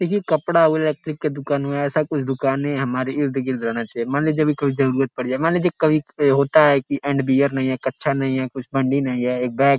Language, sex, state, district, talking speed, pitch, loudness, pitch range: Hindi, male, Uttar Pradesh, Gorakhpur, 250 wpm, 140 Hz, -20 LUFS, 130-155 Hz